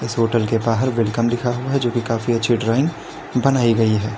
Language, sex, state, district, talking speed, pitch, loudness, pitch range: Hindi, male, Uttar Pradesh, Lalitpur, 230 wpm, 115 Hz, -19 LUFS, 115-125 Hz